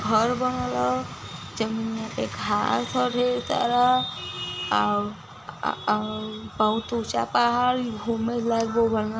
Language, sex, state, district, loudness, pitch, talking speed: Bhojpuri, female, Uttar Pradesh, Varanasi, -25 LUFS, 220 Hz, 85 wpm